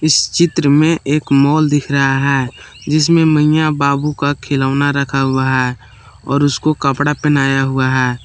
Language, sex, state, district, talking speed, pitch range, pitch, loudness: Hindi, male, Jharkhand, Palamu, 155 wpm, 135-150 Hz, 140 Hz, -14 LUFS